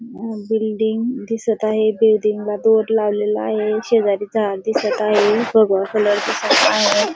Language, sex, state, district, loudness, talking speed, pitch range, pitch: Marathi, female, Maharashtra, Dhule, -17 LUFS, 125 wpm, 210-225 Hz, 215 Hz